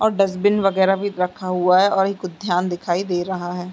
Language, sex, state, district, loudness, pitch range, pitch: Hindi, female, Uttarakhand, Tehri Garhwal, -20 LUFS, 180-195 Hz, 185 Hz